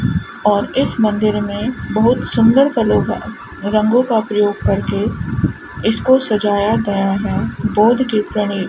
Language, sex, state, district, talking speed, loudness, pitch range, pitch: Hindi, female, Rajasthan, Bikaner, 125 wpm, -16 LUFS, 205-235 Hz, 215 Hz